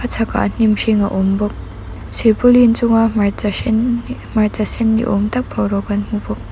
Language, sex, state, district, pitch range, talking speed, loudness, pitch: Mizo, female, Mizoram, Aizawl, 205-230 Hz, 195 wpm, -16 LUFS, 220 Hz